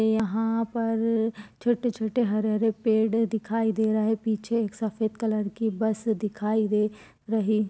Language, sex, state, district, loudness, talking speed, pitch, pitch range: Hindi, female, Chhattisgarh, Balrampur, -26 LUFS, 140 wpm, 220 Hz, 215-225 Hz